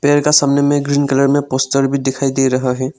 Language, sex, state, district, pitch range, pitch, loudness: Hindi, male, Arunachal Pradesh, Lower Dibang Valley, 135-145 Hz, 140 Hz, -14 LUFS